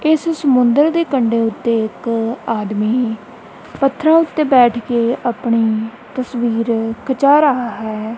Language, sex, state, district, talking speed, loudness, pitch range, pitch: Punjabi, female, Punjab, Kapurthala, 115 wpm, -16 LUFS, 225-275 Hz, 240 Hz